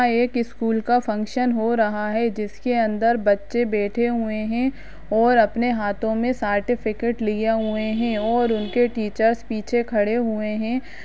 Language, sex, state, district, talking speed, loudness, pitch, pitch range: Hindi, female, Bihar, Jahanabad, 155 wpm, -22 LUFS, 225 Hz, 215-240 Hz